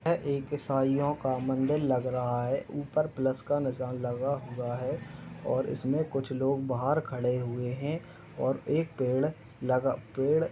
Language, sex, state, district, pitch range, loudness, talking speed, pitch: Hindi, male, Uttar Pradesh, Gorakhpur, 125-145 Hz, -31 LUFS, 165 wpm, 135 Hz